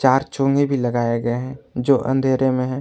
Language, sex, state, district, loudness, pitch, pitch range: Hindi, male, Jharkhand, Palamu, -20 LUFS, 130 Hz, 125-135 Hz